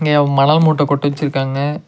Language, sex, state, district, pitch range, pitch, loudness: Tamil, male, Tamil Nadu, Nilgiris, 140-150 Hz, 145 Hz, -15 LUFS